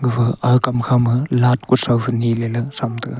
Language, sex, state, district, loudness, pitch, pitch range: Wancho, male, Arunachal Pradesh, Longding, -18 LUFS, 125 Hz, 120-125 Hz